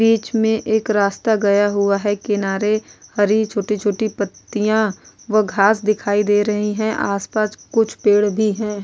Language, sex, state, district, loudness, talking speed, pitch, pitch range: Hindi, female, Goa, North and South Goa, -18 LUFS, 155 wpm, 210 Hz, 205-220 Hz